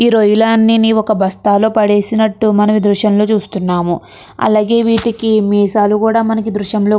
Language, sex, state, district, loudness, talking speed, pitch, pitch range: Telugu, female, Andhra Pradesh, Krishna, -12 LUFS, 135 wpm, 215 Hz, 205-220 Hz